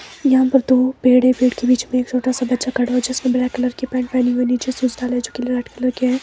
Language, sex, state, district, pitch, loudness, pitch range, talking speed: Hindi, female, Himachal Pradesh, Shimla, 250 Hz, -18 LUFS, 250-255 Hz, 320 wpm